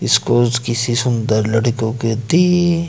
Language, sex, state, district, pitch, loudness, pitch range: Hindi, male, Madhya Pradesh, Bhopal, 120 Hz, -16 LUFS, 115-135 Hz